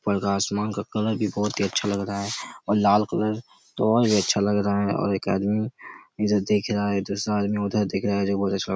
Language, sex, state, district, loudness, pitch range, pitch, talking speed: Hindi, male, Chhattisgarh, Raigarh, -24 LUFS, 100-105 Hz, 100 Hz, 255 wpm